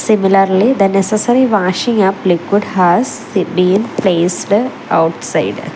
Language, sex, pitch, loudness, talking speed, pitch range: English, female, 195 Hz, -13 LUFS, 105 wpm, 185-215 Hz